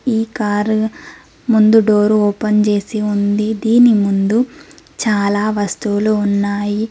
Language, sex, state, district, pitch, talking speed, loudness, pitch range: Telugu, female, Telangana, Mahabubabad, 210 Hz, 105 wpm, -15 LUFS, 205-220 Hz